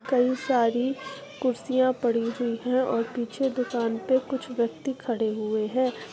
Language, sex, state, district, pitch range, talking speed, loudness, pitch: Hindi, female, Uttar Pradesh, Jyotiba Phule Nagar, 235-260 Hz, 155 wpm, -26 LUFS, 250 Hz